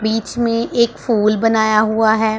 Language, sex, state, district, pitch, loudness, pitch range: Hindi, female, Punjab, Pathankot, 220 Hz, -16 LUFS, 220-230 Hz